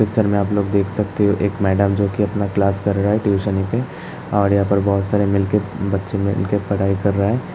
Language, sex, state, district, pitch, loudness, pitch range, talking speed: Hindi, male, Uttar Pradesh, Hamirpur, 100 Hz, -19 LUFS, 100-105 Hz, 240 wpm